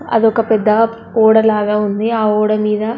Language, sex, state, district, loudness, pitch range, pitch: Telugu, female, Telangana, Karimnagar, -14 LUFS, 210-225 Hz, 220 Hz